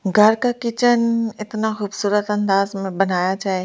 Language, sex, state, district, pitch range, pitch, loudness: Hindi, female, Delhi, New Delhi, 195-225 Hz, 210 Hz, -19 LUFS